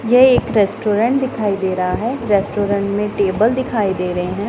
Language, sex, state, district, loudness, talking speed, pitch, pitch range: Hindi, female, Punjab, Pathankot, -17 LUFS, 185 wpm, 210 Hz, 195-235 Hz